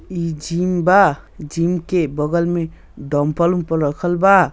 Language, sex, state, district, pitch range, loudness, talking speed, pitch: Hindi, male, Bihar, East Champaran, 155-180 Hz, -18 LUFS, 160 wpm, 170 Hz